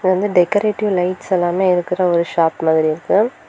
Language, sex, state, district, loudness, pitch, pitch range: Tamil, female, Tamil Nadu, Kanyakumari, -17 LUFS, 180 Hz, 170-200 Hz